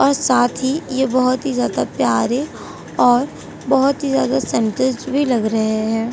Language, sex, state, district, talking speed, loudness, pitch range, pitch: Hindi, female, Uttar Pradesh, Etah, 135 wpm, -18 LUFS, 240-270 Hz, 255 Hz